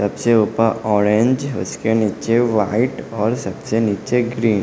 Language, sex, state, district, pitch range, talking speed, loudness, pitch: Hindi, male, Bihar, West Champaran, 105-120 Hz, 140 wpm, -18 LUFS, 110 Hz